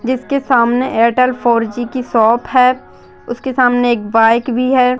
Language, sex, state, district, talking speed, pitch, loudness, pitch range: Hindi, female, Bihar, Bhagalpur, 170 wpm, 245 Hz, -13 LUFS, 230-255 Hz